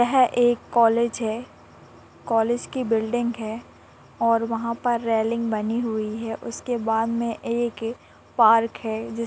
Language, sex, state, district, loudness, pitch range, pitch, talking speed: Hindi, female, Bihar, Muzaffarpur, -23 LUFS, 225-235 Hz, 230 Hz, 140 wpm